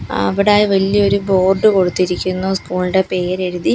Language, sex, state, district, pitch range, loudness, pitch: Malayalam, female, Kerala, Kollam, 180-200 Hz, -15 LUFS, 185 Hz